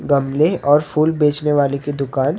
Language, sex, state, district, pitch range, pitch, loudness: Hindi, male, Maharashtra, Mumbai Suburban, 140-150 Hz, 145 Hz, -17 LUFS